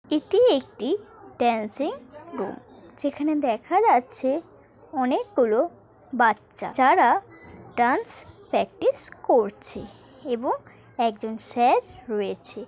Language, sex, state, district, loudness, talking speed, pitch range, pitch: Bengali, female, West Bengal, Paschim Medinipur, -24 LUFS, 80 wpm, 240-405 Hz, 295 Hz